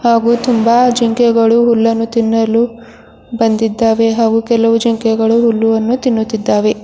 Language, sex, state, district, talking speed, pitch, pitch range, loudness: Kannada, female, Karnataka, Bidar, 95 wpm, 230 Hz, 225-235 Hz, -12 LUFS